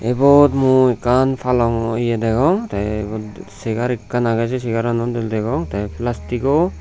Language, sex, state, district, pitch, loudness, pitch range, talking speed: Chakma, male, Tripura, Unakoti, 120 Hz, -18 LUFS, 115-125 Hz, 150 wpm